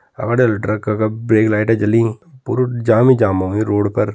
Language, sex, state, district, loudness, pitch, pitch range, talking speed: Kumaoni, male, Uttarakhand, Tehri Garhwal, -16 LUFS, 110 Hz, 105-120 Hz, 190 wpm